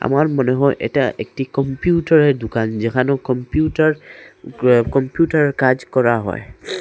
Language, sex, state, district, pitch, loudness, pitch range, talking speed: Bengali, male, Assam, Hailakandi, 135 Hz, -17 LUFS, 125-150 Hz, 125 wpm